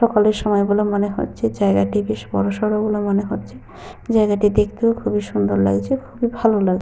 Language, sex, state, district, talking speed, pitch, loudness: Bengali, female, Jharkhand, Sahebganj, 165 wpm, 205 Hz, -19 LUFS